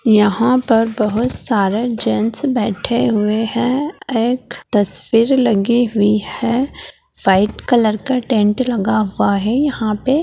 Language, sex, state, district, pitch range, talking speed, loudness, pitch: Hindi, female, Bihar, Jahanabad, 210-245 Hz, 130 wpm, -16 LUFS, 230 Hz